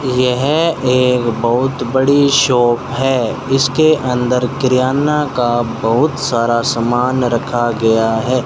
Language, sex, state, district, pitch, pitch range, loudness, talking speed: Hindi, male, Rajasthan, Bikaner, 125 Hz, 120-135 Hz, -14 LUFS, 115 wpm